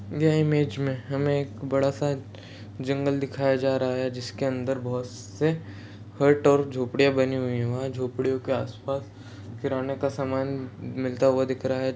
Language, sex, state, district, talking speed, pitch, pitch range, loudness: Hindi, male, Chhattisgarh, Sarguja, 170 wpm, 130 Hz, 125-140 Hz, -26 LUFS